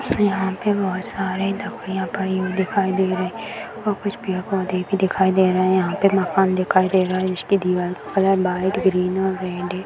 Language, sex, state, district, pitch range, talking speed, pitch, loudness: Hindi, female, Bihar, Madhepura, 185-195 Hz, 215 wpm, 190 Hz, -21 LUFS